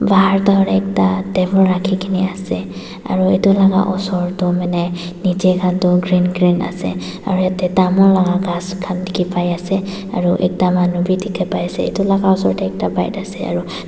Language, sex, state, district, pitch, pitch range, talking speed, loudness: Nagamese, female, Nagaland, Dimapur, 185 Hz, 175-190 Hz, 170 wpm, -16 LUFS